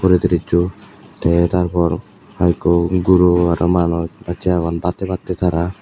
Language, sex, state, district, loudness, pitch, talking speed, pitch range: Chakma, male, Tripura, Unakoti, -17 LUFS, 90 Hz, 135 wpm, 85-90 Hz